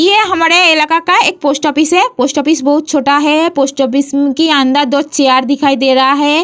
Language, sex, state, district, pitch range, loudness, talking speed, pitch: Hindi, female, Bihar, Vaishali, 280-320 Hz, -10 LUFS, 215 wpm, 290 Hz